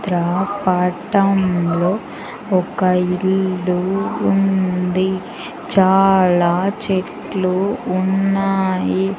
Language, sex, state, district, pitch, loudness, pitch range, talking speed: Telugu, female, Andhra Pradesh, Sri Satya Sai, 190 Hz, -17 LUFS, 180-195 Hz, 45 wpm